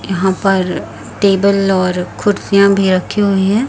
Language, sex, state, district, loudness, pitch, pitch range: Hindi, female, Chhattisgarh, Raipur, -14 LUFS, 195 Hz, 190-200 Hz